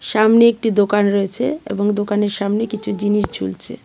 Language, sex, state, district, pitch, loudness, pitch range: Bengali, female, Tripura, West Tripura, 205 Hz, -17 LUFS, 200-220 Hz